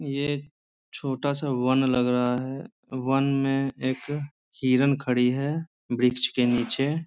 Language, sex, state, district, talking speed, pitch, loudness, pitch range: Hindi, male, Bihar, Jamui, 125 wpm, 135 Hz, -25 LUFS, 125-140 Hz